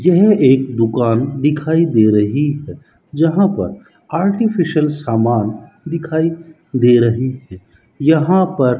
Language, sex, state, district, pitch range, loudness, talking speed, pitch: Hindi, male, Rajasthan, Bikaner, 120-165 Hz, -15 LUFS, 125 wpm, 145 Hz